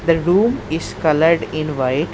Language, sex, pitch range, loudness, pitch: English, male, 155-170 Hz, -17 LUFS, 160 Hz